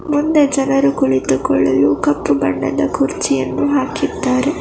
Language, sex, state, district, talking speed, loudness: Kannada, female, Karnataka, Bangalore, 90 wpm, -16 LUFS